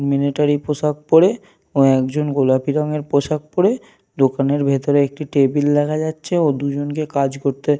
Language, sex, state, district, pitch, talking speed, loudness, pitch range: Bengali, male, Jharkhand, Jamtara, 145 Hz, 155 wpm, -18 LUFS, 140-150 Hz